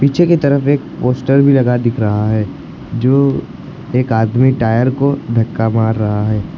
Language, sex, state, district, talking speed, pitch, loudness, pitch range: Hindi, male, Uttar Pradesh, Lucknow, 175 wpm, 125 Hz, -14 LUFS, 110-140 Hz